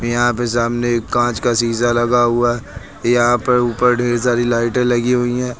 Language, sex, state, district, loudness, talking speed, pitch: Hindi, male, Uttar Pradesh, Lucknow, -16 LUFS, 180 wpm, 120 Hz